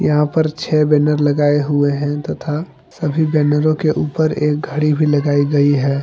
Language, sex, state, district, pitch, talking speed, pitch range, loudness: Hindi, male, Jharkhand, Deoghar, 150 Hz, 180 wpm, 145-155 Hz, -16 LUFS